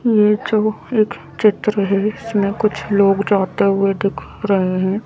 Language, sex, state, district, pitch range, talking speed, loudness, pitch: Hindi, female, Madhya Pradesh, Bhopal, 195-215 Hz, 155 wpm, -17 LUFS, 205 Hz